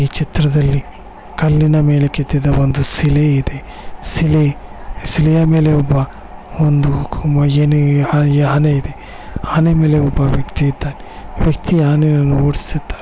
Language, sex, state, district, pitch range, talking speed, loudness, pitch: Kannada, male, Karnataka, Bellary, 140-155 Hz, 105 wpm, -14 LUFS, 145 Hz